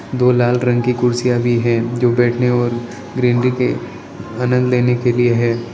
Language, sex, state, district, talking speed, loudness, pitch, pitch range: Hindi, male, Arunachal Pradesh, Lower Dibang Valley, 180 wpm, -16 LUFS, 120 Hz, 120-125 Hz